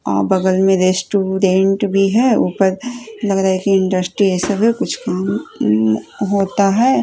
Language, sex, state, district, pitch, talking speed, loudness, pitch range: Hindi, female, Chhattisgarh, Raipur, 195 Hz, 155 wpm, -16 LUFS, 190-205 Hz